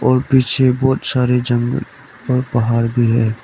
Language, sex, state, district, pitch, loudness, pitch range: Hindi, male, Arunachal Pradesh, Lower Dibang Valley, 125 Hz, -16 LUFS, 115-130 Hz